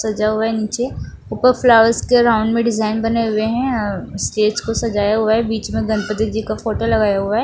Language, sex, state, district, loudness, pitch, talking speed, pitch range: Hindi, female, Bihar, West Champaran, -17 LUFS, 220 Hz, 220 wpm, 215-230 Hz